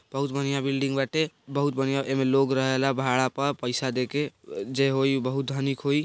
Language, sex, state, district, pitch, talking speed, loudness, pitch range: Bhojpuri, male, Bihar, East Champaran, 135 Hz, 180 wpm, -26 LUFS, 135-140 Hz